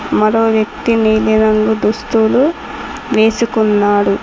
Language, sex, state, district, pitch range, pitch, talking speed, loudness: Telugu, female, Telangana, Mahabubabad, 215-225 Hz, 220 Hz, 85 wpm, -13 LUFS